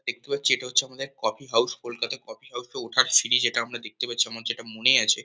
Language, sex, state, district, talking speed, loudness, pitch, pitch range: Bengali, male, West Bengal, Kolkata, 250 wpm, -24 LUFS, 120 Hz, 115-130 Hz